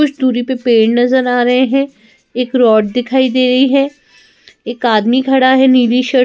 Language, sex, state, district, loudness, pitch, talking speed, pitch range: Hindi, female, Madhya Pradesh, Bhopal, -12 LUFS, 255 Hz, 200 wpm, 245-265 Hz